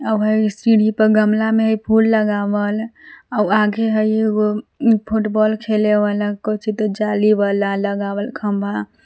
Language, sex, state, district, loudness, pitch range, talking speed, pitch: Magahi, female, Jharkhand, Palamu, -17 LUFS, 205-220 Hz, 125 wpm, 215 Hz